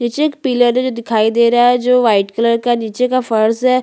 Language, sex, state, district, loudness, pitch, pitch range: Hindi, female, Chhattisgarh, Bastar, -14 LUFS, 240 Hz, 230-250 Hz